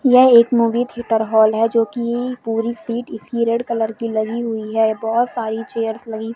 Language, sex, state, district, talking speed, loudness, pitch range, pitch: Hindi, female, Madhya Pradesh, Umaria, 200 wpm, -18 LUFS, 225-235 Hz, 230 Hz